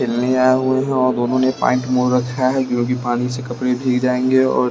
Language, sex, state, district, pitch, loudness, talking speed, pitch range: Hindi, male, Bihar, West Champaran, 125 Hz, -17 LUFS, 205 wpm, 125-130 Hz